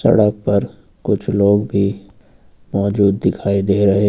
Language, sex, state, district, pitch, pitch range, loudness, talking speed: Hindi, male, Uttar Pradesh, Lucknow, 100 Hz, 100-105 Hz, -17 LUFS, 130 wpm